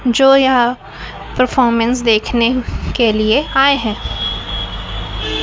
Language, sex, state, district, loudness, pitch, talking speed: Hindi, male, Chhattisgarh, Raipur, -15 LUFS, 235 Hz, 90 wpm